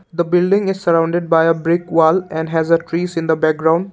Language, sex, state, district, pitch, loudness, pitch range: English, male, Assam, Kamrup Metropolitan, 165 Hz, -16 LUFS, 165-175 Hz